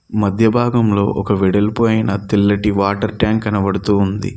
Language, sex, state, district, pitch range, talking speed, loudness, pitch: Telugu, male, Telangana, Mahabubabad, 100-110 Hz, 135 wpm, -16 LUFS, 105 Hz